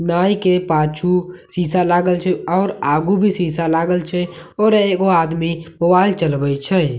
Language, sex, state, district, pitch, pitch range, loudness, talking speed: Maithili, male, Bihar, Katihar, 175 Hz, 165-185 Hz, -17 LUFS, 155 wpm